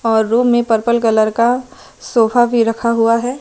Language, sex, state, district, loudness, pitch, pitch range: Hindi, female, Himachal Pradesh, Shimla, -14 LUFS, 235 Hz, 225-240 Hz